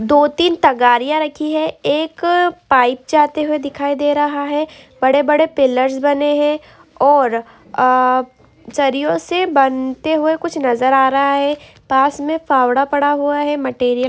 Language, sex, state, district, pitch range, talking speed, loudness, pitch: Hindi, female, Jharkhand, Jamtara, 260-305 Hz, 160 wpm, -15 LUFS, 285 Hz